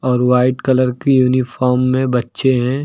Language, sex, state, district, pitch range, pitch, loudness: Hindi, male, Uttar Pradesh, Lucknow, 125-130 Hz, 130 Hz, -15 LUFS